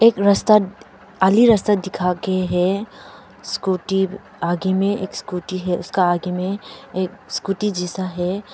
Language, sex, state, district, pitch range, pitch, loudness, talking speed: Hindi, female, Arunachal Pradesh, Papum Pare, 180-205 Hz, 190 Hz, -20 LUFS, 140 wpm